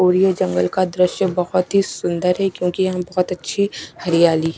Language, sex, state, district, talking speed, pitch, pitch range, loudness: Hindi, female, Chhattisgarh, Raipur, 185 wpm, 180 Hz, 175-185 Hz, -19 LUFS